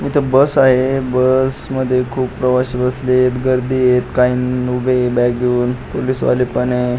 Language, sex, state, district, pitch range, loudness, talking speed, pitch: Marathi, male, Maharashtra, Pune, 125-130 Hz, -15 LUFS, 180 wpm, 125 Hz